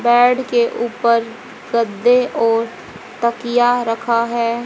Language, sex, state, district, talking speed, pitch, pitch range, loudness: Hindi, female, Haryana, Jhajjar, 105 wpm, 235 Hz, 230-245 Hz, -17 LUFS